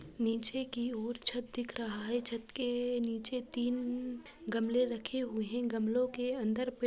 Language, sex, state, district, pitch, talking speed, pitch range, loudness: Hindi, female, Bihar, Samastipur, 240 Hz, 175 wpm, 230-250 Hz, -34 LUFS